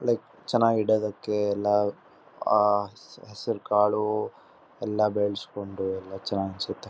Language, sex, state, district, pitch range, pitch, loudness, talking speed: Kannada, male, Karnataka, Shimoga, 100-105 Hz, 105 Hz, -27 LUFS, 105 wpm